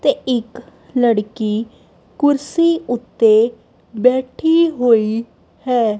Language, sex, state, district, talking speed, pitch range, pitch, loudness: Punjabi, female, Punjab, Kapurthala, 80 wpm, 225-260 Hz, 245 Hz, -17 LUFS